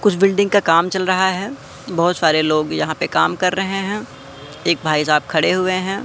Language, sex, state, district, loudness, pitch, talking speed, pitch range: Hindi, male, Madhya Pradesh, Katni, -17 LUFS, 180 Hz, 220 wpm, 155-195 Hz